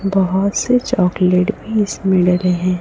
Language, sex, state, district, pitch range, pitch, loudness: Hindi, female, Chhattisgarh, Raipur, 180-200 Hz, 190 Hz, -16 LUFS